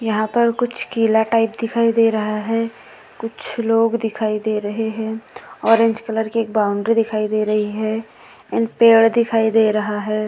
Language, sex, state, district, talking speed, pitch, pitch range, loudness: Hindi, female, Maharashtra, Solapur, 175 wpm, 225 Hz, 215-230 Hz, -18 LUFS